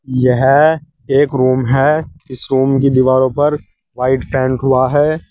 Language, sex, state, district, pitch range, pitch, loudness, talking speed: Hindi, male, Uttar Pradesh, Saharanpur, 130-145 Hz, 130 Hz, -13 LUFS, 145 wpm